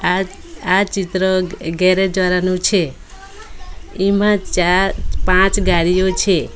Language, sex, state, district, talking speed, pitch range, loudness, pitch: Gujarati, female, Gujarat, Valsad, 120 wpm, 180-195 Hz, -16 LUFS, 185 Hz